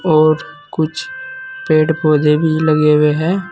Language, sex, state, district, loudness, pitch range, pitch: Hindi, male, Uttar Pradesh, Saharanpur, -14 LUFS, 150-185 Hz, 155 Hz